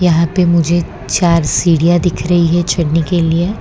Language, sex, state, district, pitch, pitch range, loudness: Hindi, female, Gujarat, Valsad, 170 Hz, 165-175 Hz, -13 LUFS